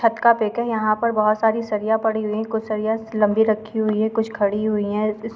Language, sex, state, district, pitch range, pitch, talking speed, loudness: Hindi, female, Chhattisgarh, Jashpur, 215-225 Hz, 220 Hz, 255 wpm, -21 LUFS